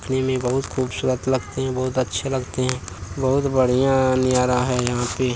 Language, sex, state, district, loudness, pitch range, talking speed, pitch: Maithili, male, Bihar, Bhagalpur, -21 LUFS, 125-130 Hz, 180 wpm, 130 Hz